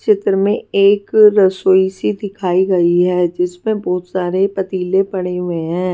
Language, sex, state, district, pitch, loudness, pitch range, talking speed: Hindi, female, Bihar, West Champaran, 190 Hz, -15 LUFS, 180-195 Hz, 150 wpm